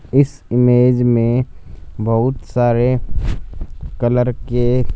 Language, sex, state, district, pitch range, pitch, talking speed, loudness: Hindi, male, Punjab, Fazilka, 115-125 Hz, 120 Hz, 85 wpm, -16 LUFS